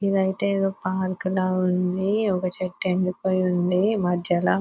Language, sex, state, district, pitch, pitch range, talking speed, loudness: Telugu, female, Telangana, Nalgonda, 185 Hz, 180-195 Hz, 155 wpm, -23 LUFS